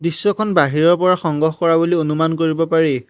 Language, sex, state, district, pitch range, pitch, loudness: Assamese, male, Assam, Hailakandi, 160-170 Hz, 165 Hz, -16 LUFS